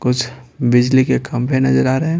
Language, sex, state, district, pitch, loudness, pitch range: Hindi, male, Bihar, Patna, 130 Hz, -16 LUFS, 125-130 Hz